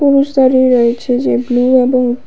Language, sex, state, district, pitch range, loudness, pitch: Bengali, female, Tripura, West Tripura, 245-260 Hz, -12 LUFS, 255 Hz